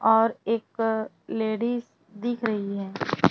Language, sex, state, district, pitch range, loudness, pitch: Hindi, female, Chhattisgarh, Raipur, 215-230 Hz, -27 LUFS, 225 Hz